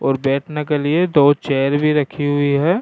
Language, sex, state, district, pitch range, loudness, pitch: Rajasthani, male, Rajasthan, Churu, 140-150 Hz, -17 LUFS, 145 Hz